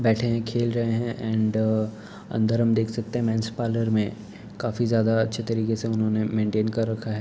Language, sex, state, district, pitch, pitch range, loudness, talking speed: Hindi, male, Uttar Pradesh, Etah, 110 Hz, 110-115 Hz, -25 LUFS, 200 wpm